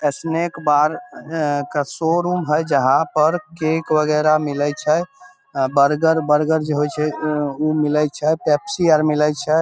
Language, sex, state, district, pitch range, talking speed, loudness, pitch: Maithili, male, Bihar, Samastipur, 150-165 Hz, 150 wpm, -18 LUFS, 155 Hz